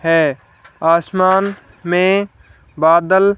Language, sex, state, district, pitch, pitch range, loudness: Hindi, female, Haryana, Charkhi Dadri, 175 Hz, 165-190 Hz, -15 LUFS